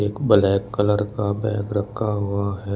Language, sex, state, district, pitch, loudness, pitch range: Hindi, male, Uttar Pradesh, Shamli, 105 Hz, -21 LUFS, 100-105 Hz